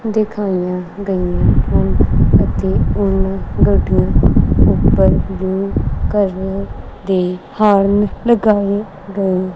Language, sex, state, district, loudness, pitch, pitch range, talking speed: Punjabi, female, Punjab, Kapurthala, -15 LUFS, 190 Hz, 125-200 Hz, 75 wpm